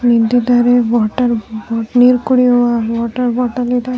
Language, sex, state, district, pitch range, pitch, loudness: Kannada, female, Karnataka, Dharwad, 230-245 Hz, 245 Hz, -13 LUFS